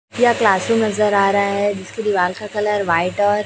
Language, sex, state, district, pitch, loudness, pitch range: Hindi, female, Chhattisgarh, Raipur, 205 Hz, -17 LUFS, 200-210 Hz